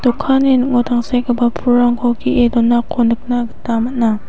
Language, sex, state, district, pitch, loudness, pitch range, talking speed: Garo, female, Meghalaya, West Garo Hills, 240 Hz, -15 LUFS, 235-250 Hz, 125 wpm